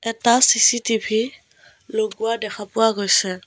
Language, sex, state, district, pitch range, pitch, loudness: Assamese, female, Assam, Kamrup Metropolitan, 215-230 Hz, 225 Hz, -18 LUFS